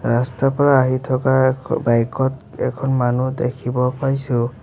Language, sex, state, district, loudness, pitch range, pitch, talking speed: Assamese, male, Assam, Sonitpur, -19 LUFS, 125-135 Hz, 130 Hz, 130 wpm